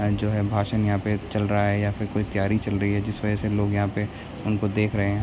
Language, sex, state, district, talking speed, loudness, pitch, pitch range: Hindi, male, Bihar, Begusarai, 300 wpm, -25 LUFS, 105 Hz, 100-105 Hz